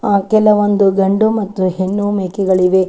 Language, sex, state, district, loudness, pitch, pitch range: Kannada, female, Karnataka, Chamarajanagar, -14 LUFS, 200 Hz, 190-205 Hz